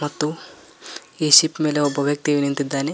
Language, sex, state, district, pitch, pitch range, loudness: Kannada, male, Karnataka, Koppal, 150 Hz, 140-155 Hz, -18 LUFS